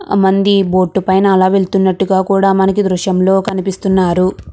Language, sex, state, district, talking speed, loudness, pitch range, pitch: Telugu, female, Andhra Pradesh, Guntur, 145 wpm, -13 LUFS, 185-195 Hz, 190 Hz